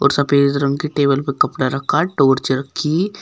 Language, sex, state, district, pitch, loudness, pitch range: Hindi, female, Uttar Pradesh, Shamli, 140 Hz, -17 LUFS, 135-150 Hz